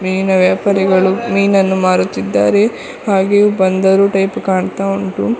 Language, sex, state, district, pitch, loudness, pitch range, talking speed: Kannada, female, Karnataka, Dakshina Kannada, 190 Hz, -13 LUFS, 185-200 Hz, 100 wpm